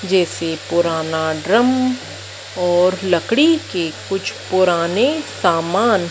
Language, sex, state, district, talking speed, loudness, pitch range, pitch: Hindi, female, Madhya Pradesh, Dhar, 90 wpm, -17 LUFS, 170-230 Hz, 180 Hz